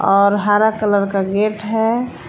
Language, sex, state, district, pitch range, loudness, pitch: Hindi, female, Jharkhand, Palamu, 200-220 Hz, -16 LUFS, 210 Hz